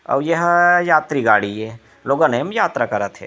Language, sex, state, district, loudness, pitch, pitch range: Chhattisgarhi, male, Chhattisgarh, Rajnandgaon, -17 LUFS, 150 Hz, 110-170 Hz